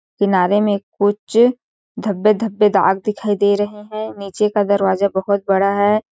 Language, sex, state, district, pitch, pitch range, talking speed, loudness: Hindi, female, Chhattisgarh, Sarguja, 205 Hz, 200-210 Hz, 145 wpm, -17 LUFS